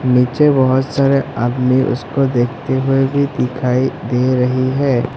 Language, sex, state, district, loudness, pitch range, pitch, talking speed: Hindi, male, Assam, Sonitpur, -15 LUFS, 125-135 Hz, 130 Hz, 140 wpm